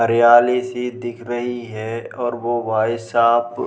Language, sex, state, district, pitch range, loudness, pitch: Hindi, male, Bihar, Vaishali, 115-120 Hz, -19 LUFS, 120 Hz